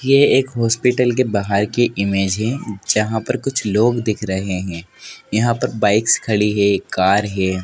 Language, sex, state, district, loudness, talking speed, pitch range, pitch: Hindi, male, Madhya Pradesh, Dhar, -17 LUFS, 180 wpm, 100-120 Hz, 105 Hz